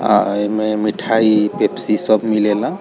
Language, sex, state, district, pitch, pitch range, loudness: Bhojpuri, male, Bihar, East Champaran, 105 Hz, 105-110 Hz, -16 LUFS